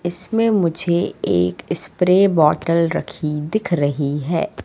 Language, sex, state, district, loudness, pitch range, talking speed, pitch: Hindi, female, Madhya Pradesh, Katni, -19 LUFS, 150-180 Hz, 115 wpm, 170 Hz